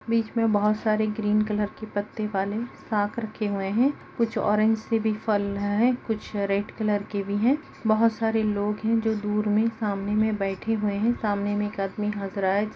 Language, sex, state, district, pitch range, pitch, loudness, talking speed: Hindi, female, Bihar, Kishanganj, 205-220 Hz, 210 Hz, -26 LUFS, 230 wpm